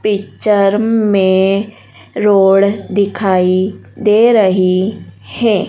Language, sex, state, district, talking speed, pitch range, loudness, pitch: Hindi, female, Madhya Pradesh, Dhar, 75 wpm, 190-210 Hz, -13 LUFS, 200 Hz